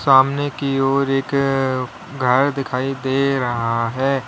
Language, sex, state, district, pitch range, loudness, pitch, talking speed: Hindi, male, Uttar Pradesh, Lalitpur, 130-140 Hz, -19 LUFS, 135 Hz, 140 wpm